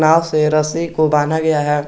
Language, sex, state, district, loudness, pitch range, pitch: Hindi, male, Jharkhand, Garhwa, -16 LUFS, 150-160 Hz, 155 Hz